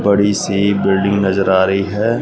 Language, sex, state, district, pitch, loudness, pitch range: Hindi, male, Punjab, Fazilka, 100 Hz, -15 LUFS, 95-100 Hz